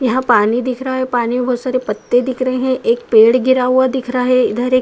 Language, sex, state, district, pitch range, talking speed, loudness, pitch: Hindi, female, Bihar, Saharsa, 240-255 Hz, 285 wpm, -15 LUFS, 255 Hz